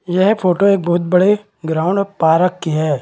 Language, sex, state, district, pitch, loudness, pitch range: Hindi, male, Chhattisgarh, Raigarh, 180 Hz, -15 LUFS, 160-200 Hz